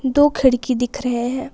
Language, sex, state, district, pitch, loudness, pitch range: Hindi, female, Jharkhand, Palamu, 260 Hz, -18 LUFS, 245-275 Hz